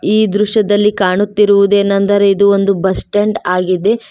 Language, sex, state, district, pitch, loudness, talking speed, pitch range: Kannada, female, Karnataka, Koppal, 200 Hz, -12 LUFS, 115 wpm, 195-210 Hz